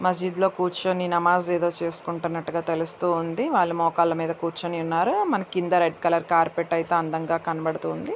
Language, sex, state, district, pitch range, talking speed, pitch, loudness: Telugu, female, Andhra Pradesh, Visakhapatnam, 165-180 Hz, 155 wpm, 170 Hz, -24 LUFS